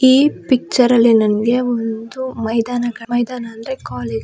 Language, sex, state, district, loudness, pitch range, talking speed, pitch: Kannada, male, Karnataka, Chamarajanagar, -17 LUFS, 225-250 Hz, 140 wpm, 240 Hz